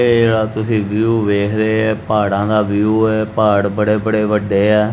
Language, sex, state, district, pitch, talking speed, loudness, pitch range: Punjabi, male, Punjab, Kapurthala, 110 Hz, 205 wpm, -15 LUFS, 105-110 Hz